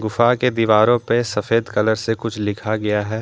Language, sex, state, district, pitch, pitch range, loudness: Hindi, male, Jharkhand, Deoghar, 110 Hz, 105-115 Hz, -18 LUFS